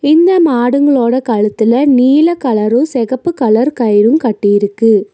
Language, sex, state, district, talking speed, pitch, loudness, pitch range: Tamil, female, Tamil Nadu, Nilgiris, 105 wpm, 245 Hz, -11 LUFS, 220-285 Hz